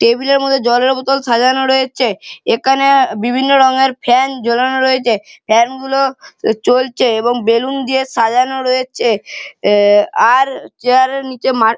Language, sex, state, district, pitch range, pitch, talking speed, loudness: Bengali, male, West Bengal, Malda, 235-265 Hz, 255 Hz, 140 wpm, -13 LUFS